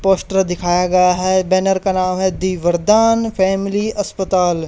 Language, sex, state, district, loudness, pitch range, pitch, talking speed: Hindi, male, Haryana, Charkhi Dadri, -16 LUFS, 180-195 Hz, 185 Hz, 155 wpm